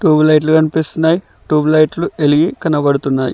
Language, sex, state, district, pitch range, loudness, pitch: Telugu, male, Telangana, Mahabubabad, 150-160 Hz, -14 LUFS, 155 Hz